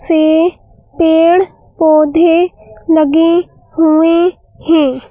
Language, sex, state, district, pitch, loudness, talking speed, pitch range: Hindi, female, Madhya Pradesh, Bhopal, 325 Hz, -11 LUFS, 70 wpm, 315-340 Hz